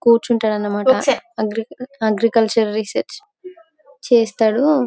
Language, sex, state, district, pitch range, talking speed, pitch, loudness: Telugu, female, Telangana, Karimnagar, 220-280 Hz, 50 wpm, 235 Hz, -18 LUFS